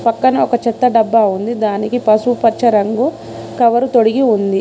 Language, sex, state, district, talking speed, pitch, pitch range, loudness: Telugu, female, Telangana, Mahabubabad, 155 wpm, 230 Hz, 215-245 Hz, -14 LUFS